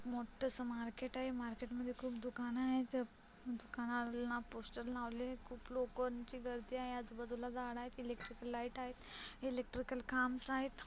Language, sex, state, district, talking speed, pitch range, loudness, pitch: Marathi, female, Maharashtra, Solapur, 130 wpm, 240-255 Hz, -43 LUFS, 245 Hz